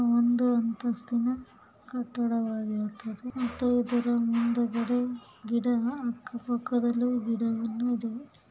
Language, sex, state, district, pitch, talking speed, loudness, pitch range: Kannada, female, Karnataka, Bellary, 240 Hz, 85 wpm, -29 LUFS, 230-245 Hz